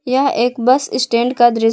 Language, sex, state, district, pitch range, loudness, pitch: Hindi, female, Jharkhand, Palamu, 235-260 Hz, -15 LUFS, 245 Hz